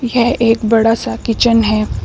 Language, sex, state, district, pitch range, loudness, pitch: Hindi, female, Uttar Pradesh, Shamli, 225-240 Hz, -13 LUFS, 230 Hz